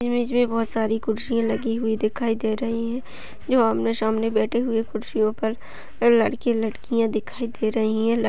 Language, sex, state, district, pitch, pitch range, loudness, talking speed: Hindi, female, Uttar Pradesh, Hamirpur, 225 Hz, 220-235 Hz, -23 LUFS, 175 wpm